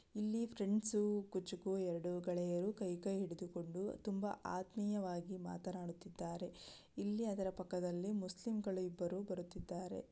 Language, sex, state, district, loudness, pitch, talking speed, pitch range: Kannada, female, Karnataka, Belgaum, -43 LUFS, 185 Hz, 100 wpm, 180-205 Hz